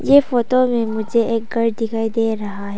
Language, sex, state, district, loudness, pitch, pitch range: Hindi, female, Arunachal Pradesh, Papum Pare, -18 LUFS, 230 Hz, 220-240 Hz